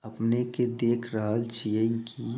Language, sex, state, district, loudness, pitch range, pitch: Maithili, male, Bihar, Samastipur, -28 LUFS, 110-120 Hz, 115 Hz